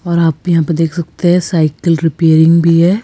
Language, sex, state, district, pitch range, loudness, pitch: Hindi, female, Rajasthan, Jaipur, 165-175 Hz, -12 LUFS, 165 Hz